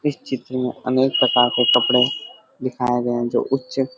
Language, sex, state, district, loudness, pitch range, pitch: Hindi, male, Uttar Pradesh, Varanasi, -19 LUFS, 125-135 Hz, 130 Hz